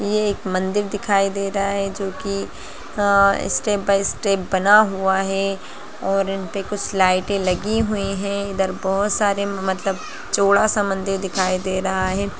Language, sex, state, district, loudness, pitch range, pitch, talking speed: Hindi, female, Bihar, Gaya, -20 LUFS, 190-200 Hz, 195 Hz, 170 wpm